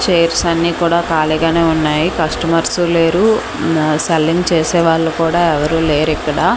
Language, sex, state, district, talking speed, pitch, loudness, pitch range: Telugu, female, Andhra Pradesh, Manyam, 120 wpm, 165 Hz, -14 LUFS, 160-170 Hz